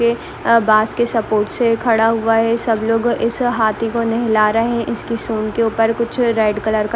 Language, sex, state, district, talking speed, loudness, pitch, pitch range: Hindi, female, Bihar, Madhepura, 215 wpm, -16 LUFS, 230 Hz, 220-235 Hz